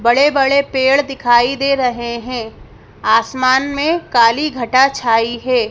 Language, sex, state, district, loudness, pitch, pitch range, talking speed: Hindi, female, Madhya Pradesh, Bhopal, -15 LUFS, 255 Hz, 235-275 Hz, 125 wpm